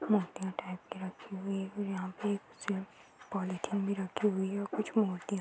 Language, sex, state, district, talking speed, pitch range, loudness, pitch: Hindi, female, Uttar Pradesh, Hamirpur, 220 wpm, 190-205 Hz, -36 LUFS, 195 Hz